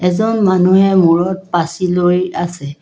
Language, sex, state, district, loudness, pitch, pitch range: Assamese, female, Assam, Kamrup Metropolitan, -14 LUFS, 180 Hz, 175-190 Hz